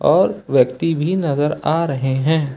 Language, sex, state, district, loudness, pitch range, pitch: Hindi, male, Uttar Pradesh, Lucknow, -18 LUFS, 135-165 Hz, 150 Hz